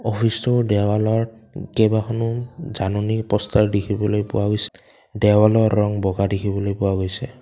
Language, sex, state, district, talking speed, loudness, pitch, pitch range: Assamese, male, Assam, Kamrup Metropolitan, 115 wpm, -20 LUFS, 105 Hz, 100-115 Hz